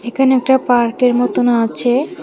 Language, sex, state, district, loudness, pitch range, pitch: Bengali, female, Tripura, West Tripura, -14 LUFS, 240-265 Hz, 245 Hz